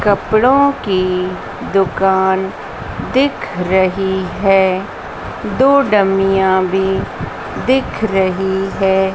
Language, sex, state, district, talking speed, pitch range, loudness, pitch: Hindi, female, Madhya Pradesh, Dhar, 80 wpm, 190-205 Hz, -15 LUFS, 190 Hz